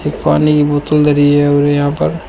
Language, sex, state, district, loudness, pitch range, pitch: Hindi, male, Uttar Pradesh, Shamli, -12 LUFS, 145-150 Hz, 145 Hz